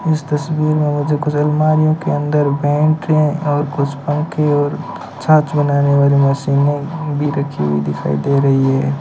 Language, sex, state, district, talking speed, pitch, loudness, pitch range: Hindi, male, Rajasthan, Bikaner, 160 wpm, 145 Hz, -16 LUFS, 140-155 Hz